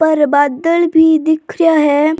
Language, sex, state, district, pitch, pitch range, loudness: Rajasthani, female, Rajasthan, Churu, 315 Hz, 295-330 Hz, -12 LUFS